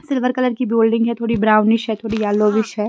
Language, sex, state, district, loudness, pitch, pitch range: Hindi, female, Himachal Pradesh, Shimla, -17 LUFS, 225 Hz, 215-235 Hz